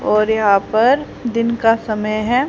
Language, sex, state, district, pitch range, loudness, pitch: Hindi, female, Haryana, Rohtak, 215-235 Hz, -16 LUFS, 225 Hz